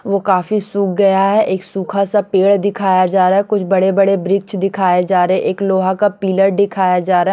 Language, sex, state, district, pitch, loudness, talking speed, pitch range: Hindi, female, Chandigarh, Chandigarh, 195 Hz, -14 LUFS, 190 wpm, 190-200 Hz